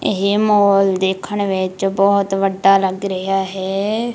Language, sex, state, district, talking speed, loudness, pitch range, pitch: Punjabi, female, Punjab, Kapurthala, 130 wpm, -16 LUFS, 190-200 Hz, 195 Hz